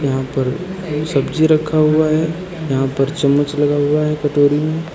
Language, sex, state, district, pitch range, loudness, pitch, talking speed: Hindi, male, Uttar Pradesh, Lucknow, 145-155 Hz, -16 LUFS, 150 Hz, 170 wpm